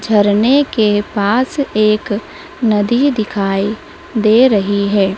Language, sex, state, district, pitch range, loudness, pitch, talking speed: Hindi, female, Madhya Pradesh, Dhar, 205-245 Hz, -14 LUFS, 215 Hz, 105 wpm